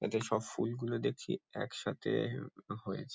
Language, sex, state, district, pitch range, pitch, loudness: Bengali, male, West Bengal, Kolkata, 110-140 Hz, 120 Hz, -38 LUFS